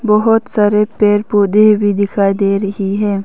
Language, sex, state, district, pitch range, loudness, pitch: Hindi, female, Arunachal Pradesh, Longding, 200-210 Hz, -13 LUFS, 205 Hz